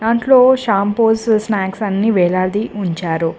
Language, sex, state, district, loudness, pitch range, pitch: Telugu, female, Telangana, Mahabubabad, -15 LUFS, 185-225 Hz, 210 Hz